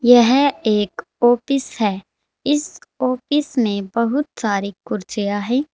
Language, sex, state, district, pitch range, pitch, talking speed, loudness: Hindi, female, Uttar Pradesh, Saharanpur, 210-275 Hz, 240 Hz, 115 wpm, -19 LUFS